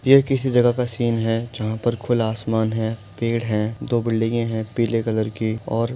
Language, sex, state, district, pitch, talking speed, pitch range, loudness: Hindi, male, Uttar Pradesh, Etah, 115 Hz, 210 wpm, 110-120 Hz, -22 LUFS